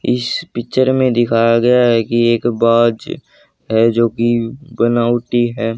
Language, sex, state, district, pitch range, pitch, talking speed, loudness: Hindi, male, Haryana, Charkhi Dadri, 115-120 Hz, 120 Hz, 145 wpm, -14 LUFS